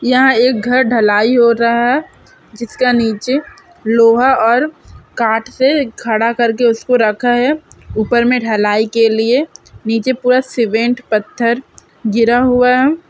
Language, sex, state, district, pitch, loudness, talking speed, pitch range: Hindi, female, Andhra Pradesh, Krishna, 240 Hz, -13 LUFS, 135 wpm, 225-255 Hz